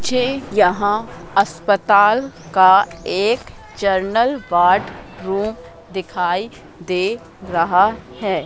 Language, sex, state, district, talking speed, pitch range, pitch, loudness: Hindi, female, Madhya Pradesh, Katni, 85 wpm, 180-215 Hz, 195 Hz, -17 LUFS